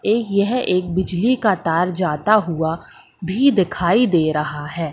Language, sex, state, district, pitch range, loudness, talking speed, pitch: Hindi, female, Madhya Pradesh, Katni, 165-215 Hz, -18 LUFS, 160 wpm, 180 Hz